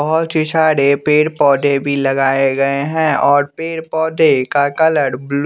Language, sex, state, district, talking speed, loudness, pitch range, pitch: Hindi, male, Bihar, West Champaran, 165 wpm, -14 LUFS, 140-160 Hz, 145 Hz